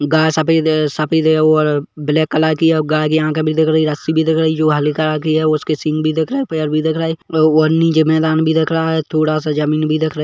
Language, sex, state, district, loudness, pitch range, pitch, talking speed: Hindi, male, Chhattisgarh, Kabirdham, -15 LUFS, 155-160 Hz, 155 Hz, 265 wpm